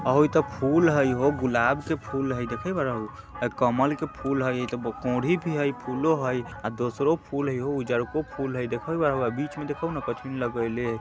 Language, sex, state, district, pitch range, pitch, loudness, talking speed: Bajjika, male, Bihar, Vaishali, 120-145 Hz, 135 Hz, -26 LUFS, 210 wpm